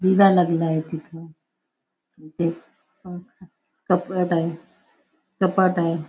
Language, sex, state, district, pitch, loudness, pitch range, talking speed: Marathi, female, Maharashtra, Nagpur, 170 Hz, -21 LUFS, 165-185 Hz, 100 wpm